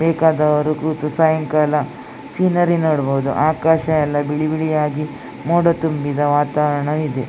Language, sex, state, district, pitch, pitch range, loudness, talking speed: Kannada, female, Karnataka, Dakshina Kannada, 155 Hz, 145-160 Hz, -18 LUFS, 105 wpm